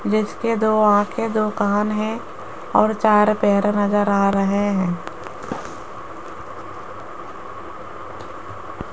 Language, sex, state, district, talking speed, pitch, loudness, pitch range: Hindi, female, Rajasthan, Jaipur, 85 wpm, 210 Hz, -19 LUFS, 205-215 Hz